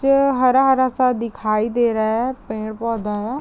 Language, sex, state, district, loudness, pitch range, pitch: Hindi, female, Chhattisgarh, Raigarh, -19 LUFS, 220-260 Hz, 235 Hz